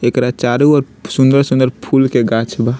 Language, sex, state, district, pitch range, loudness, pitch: Bhojpuri, male, Bihar, Muzaffarpur, 120-135 Hz, -13 LUFS, 130 Hz